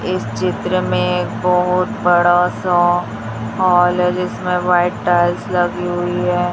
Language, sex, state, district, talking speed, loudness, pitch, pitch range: Hindi, male, Chhattisgarh, Raipur, 140 wpm, -16 LUFS, 175 Hz, 175-180 Hz